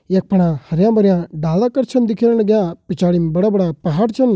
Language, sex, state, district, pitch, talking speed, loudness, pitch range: Garhwali, male, Uttarakhand, Uttarkashi, 190 Hz, 190 wpm, -16 LUFS, 175-225 Hz